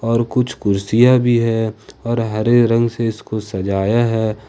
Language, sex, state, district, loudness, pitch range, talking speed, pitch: Hindi, male, Jharkhand, Ranchi, -17 LUFS, 110-120 Hz, 175 wpm, 115 Hz